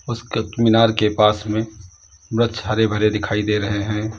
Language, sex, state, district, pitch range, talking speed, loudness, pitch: Hindi, male, Uttar Pradesh, Lalitpur, 105-110 Hz, 185 wpm, -19 LUFS, 105 Hz